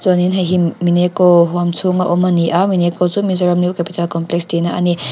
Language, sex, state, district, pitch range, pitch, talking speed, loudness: Mizo, female, Mizoram, Aizawl, 170-180 Hz, 175 Hz, 165 wpm, -15 LUFS